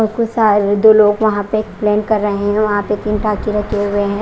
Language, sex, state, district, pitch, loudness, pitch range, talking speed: Hindi, female, Punjab, Kapurthala, 210 Hz, -14 LUFS, 205-215 Hz, 255 wpm